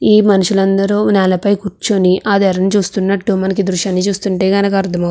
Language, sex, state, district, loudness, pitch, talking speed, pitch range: Telugu, female, Andhra Pradesh, Chittoor, -14 LUFS, 195 Hz, 165 wpm, 190-200 Hz